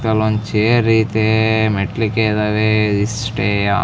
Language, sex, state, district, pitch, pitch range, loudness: Kannada, female, Karnataka, Raichur, 110 Hz, 105-110 Hz, -16 LUFS